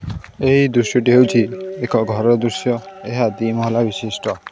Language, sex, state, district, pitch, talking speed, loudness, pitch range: Odia, male, Odisha, Khordha, 120 Hz, 120 wpm, -17 LUFS, 110-125 Hz